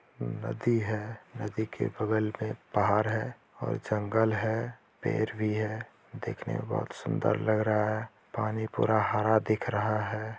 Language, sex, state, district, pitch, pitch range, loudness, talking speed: Hindi, male, Jharkhand, Jamtara, 110 Hz, 105-110 Hz, -30 LUFS, 160 wpm